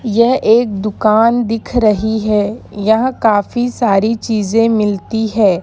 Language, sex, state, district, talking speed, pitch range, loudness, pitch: Hindi, female, Bihar, Bhagalpur, 130 wpm, 210-230 Hz, -14 LUFS, 220 Hz